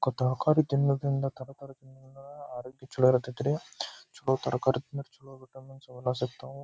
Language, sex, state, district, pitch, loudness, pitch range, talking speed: Kannada, male, Karnataka, Dharwad, 135 Hz, -29 LUFS, 130-140 Hz, 135 wpm